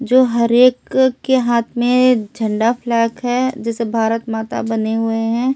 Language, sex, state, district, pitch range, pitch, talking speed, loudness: Hindi, female, Delhi, New Delhi, 225-250 Hz, 235 Hz, 160 wpm, -16 LUFS